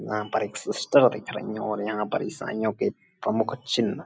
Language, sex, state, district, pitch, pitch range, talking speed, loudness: Hindi, male, Uttar Pradesh, Gorakhpur, 105 Hz, 105-110 Hz, 220 wpm, -26 LUFS